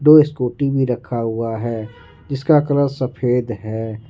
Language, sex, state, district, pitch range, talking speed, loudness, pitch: Hindi, male, Jharkhand, Ranchi, 115-140 Hz, 145 wpm, -19 LUFS, 125 Hz